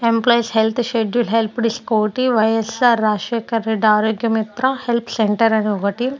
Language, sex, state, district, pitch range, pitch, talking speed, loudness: Telugu, female, Andhra Pradesh, Sri Satya Sai, 220-235 Hz, 225 Hz, 135 wpm, -18 LUFS